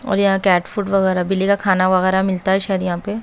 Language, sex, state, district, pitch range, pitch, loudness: Hindi, female, Haryana, Charkhi Dadri, 185-200 Hz, 190 Hz, -17 LUFS